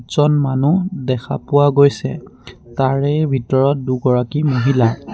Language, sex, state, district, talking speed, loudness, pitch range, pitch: Assamese, male, Assam, Sonitpur, 105 wpm, -16 LUFS, 130-145 Hz, 135 Hz